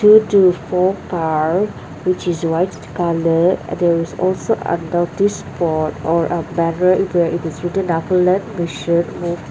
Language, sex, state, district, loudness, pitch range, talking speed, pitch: English, female, Nagaland, Dimapur, -17 LUFS, 165-185 Hz, 140 wpm, 175 Hz